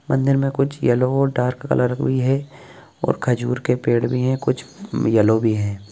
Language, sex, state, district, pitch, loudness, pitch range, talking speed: Bhojpuri, male, Bihar, Saran, 125 Hz, -20 LUFS, 120-135 Hz, 200 wpm